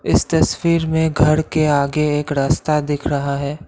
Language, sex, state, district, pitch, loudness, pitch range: Hindi, male, Assam, Kamrup Metropolitan, 150 Hz, -17 LUFS, 145-155 Hz